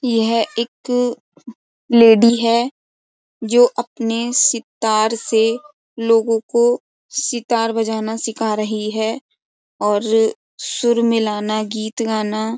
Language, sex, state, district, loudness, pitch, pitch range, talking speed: Hindi, female, Uttar Pradesh, Jyotiba Phule Nagar, -17 LUFS, 230 Hz, 220-240 Hz, 95 wpm